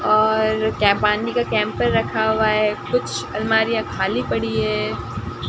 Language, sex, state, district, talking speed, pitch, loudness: Hindi, female, Rajasthan, Barmer, 140 wpm, 210 Hz, -20 LUFS